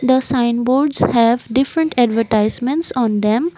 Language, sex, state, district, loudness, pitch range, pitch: English, female, Assam, Kamrup Metropolitan, -16 LUFS, 230-270 Hz, 250 Hz